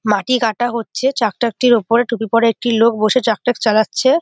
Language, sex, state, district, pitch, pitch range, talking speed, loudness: Bengali, female, West Bengal, Jhargram, 230 Hz, 220-245 Hz, 200 wpm, -16 LUFS